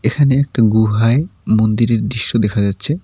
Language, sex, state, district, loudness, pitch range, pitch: Bengali, male, West Bengal, Cooch Behar, -15 LUFS, 110-135 Hz, 115 Hz